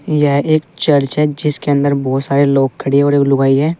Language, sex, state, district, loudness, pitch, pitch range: Hindi, male, Uttar Pradesh, Saharanpur, -14 LUFS, 145 Hz, 140-150 Hz